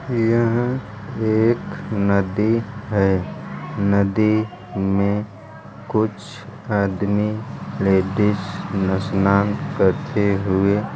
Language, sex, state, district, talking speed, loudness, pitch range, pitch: Hindi, male, Bihar, Saran, 70 wpm, -20 LUFS, 100-110 Hz, 105 Hz